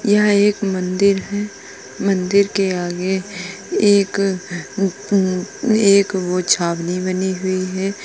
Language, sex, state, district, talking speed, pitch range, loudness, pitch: Hindi, female, Uttar Pradesh, Etah, 105 wpm, 185-200 Hz, -18 LUFS, 195 Hz